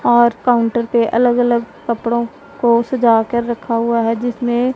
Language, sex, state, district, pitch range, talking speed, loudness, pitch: Hindi, female, Punjab, Pathankot, 235-245 Hz, 165 wpm, -16 LUFS, 235 Hz